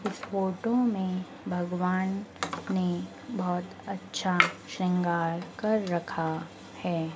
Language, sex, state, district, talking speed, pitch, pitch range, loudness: Hindi, female, Madhya Pradesh, Dhar, 90 wpm, 185 Hz, 175-200 Hz, -30 LUFS